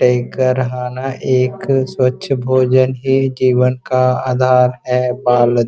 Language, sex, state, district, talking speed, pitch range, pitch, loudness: Hindi, male, Uttar Pradesh, Muzaffarnagar, 115 wpm, 125-130 Hz, 130 Hz, -15 LUFS